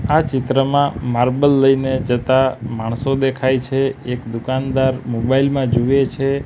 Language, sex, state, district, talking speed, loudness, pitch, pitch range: Gujarati, male, Gujarat, Gandhinagar, 130 wpm, -17 LUFS, 130 Hz, 125-135 Hz